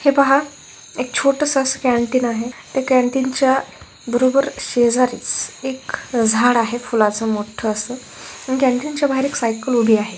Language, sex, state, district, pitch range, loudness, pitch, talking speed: Marathi, female, Maharashtra, Solapur, 235-270 Hz, -18 LUFS, 255 Hz, 145 wpm